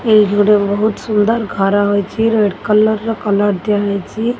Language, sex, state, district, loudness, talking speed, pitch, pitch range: Odia, female, Odisha, Khordha, -14 LUFS, 135 wpm, 210 Hz, 200-220 Hz